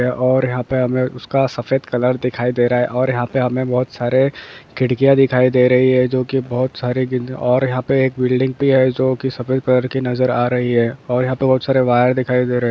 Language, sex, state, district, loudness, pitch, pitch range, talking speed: Hindi, male, Jharkhand, Sahebganj, -17 LUFS, 125 Hz, 125-130 Hz, 245 wpm